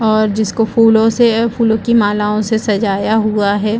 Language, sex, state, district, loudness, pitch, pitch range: Hindi, female, Chhattisgarh, Bilaspur, -13 LUFS, 220 Hz, 210-225 Hz